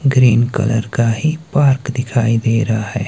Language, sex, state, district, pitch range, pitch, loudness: Hindi, male, Himachal Pradesh, Shimla, 115-135 Hz, 120 Hz, -15 LUFS